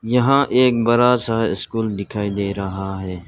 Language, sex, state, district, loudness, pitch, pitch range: Hindi, male, Arunachal Pradesh, Lower Dibang Valley, -19 LUFS, 110 Hz, 100-120 Hz